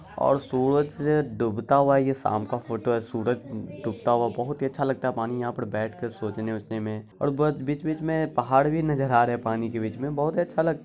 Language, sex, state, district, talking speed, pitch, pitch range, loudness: Hindi, male, Bihar, Araria, 225 wpm, 125 Hz, 115-145 Hz, -26 LUFS